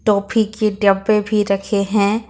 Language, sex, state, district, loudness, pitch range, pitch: Hindi, female, Jharkhand, Ranchi, -17 LUFS, 200-215 Hz, 210 Hz